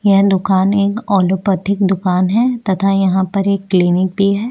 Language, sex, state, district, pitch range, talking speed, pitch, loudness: Hindi, female, Uttarakhand, Tehri Garhwal, 190-200 Hz, 175 wpm, 195 Hz, -15 LUFS